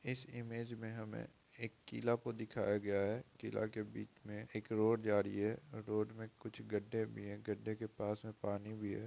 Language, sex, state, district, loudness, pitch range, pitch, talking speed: Hindi, female, Bihar, East Champaran, -42 LUFS, 105-115 Hz, 110 Hz, 210 wpm